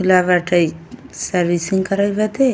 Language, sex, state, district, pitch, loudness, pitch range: Bhojpuri, female, Uttar Pradesh, Ghazipur, 185 Hz, -17 LUFS, 175-200 Hz